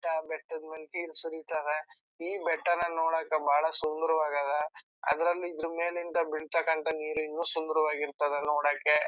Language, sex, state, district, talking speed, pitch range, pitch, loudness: Kannada, male, Karnataka, Chamarajanagar, 130 wpm, 155-165 Hz, 160 Hz, -31 LUFS